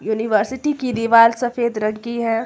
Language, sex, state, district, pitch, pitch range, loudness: Hindi, female, Jharkhand, Garhwa, 230 Hz, 220-245 Hz, -18 LUFS